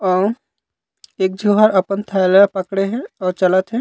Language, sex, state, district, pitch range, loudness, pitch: Chhattisgarhi, male, Chhattisgarh, Raigarh, 185-205 Hz, -16 LUFS, 195 Hz